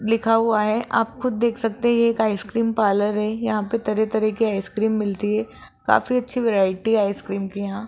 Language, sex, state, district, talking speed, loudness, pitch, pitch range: Hindi, female, Rajasthan, Jaipur, 215 wpm, -21 LUFS, 220 Hz, 210-230 Hz